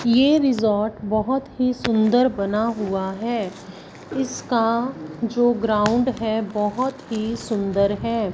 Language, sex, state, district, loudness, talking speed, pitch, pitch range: Hindi, female, Punjab, Fazilka, -22 LUFS, 120 wpm, 225 Hz, 210-250 Hz